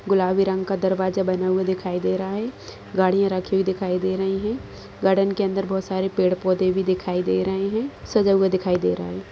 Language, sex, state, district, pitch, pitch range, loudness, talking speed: Hindi, female, Bihar, Madhepura, 190 Hz, 185-195 Hz, -22 LUFS, 220 wpm